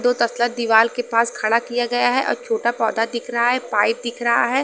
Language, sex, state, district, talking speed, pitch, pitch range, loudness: Hindi, female, Haryana, Charkhi Dadri, 245 wpm, 235 Hz, 230-245 Hz, -19 LUFS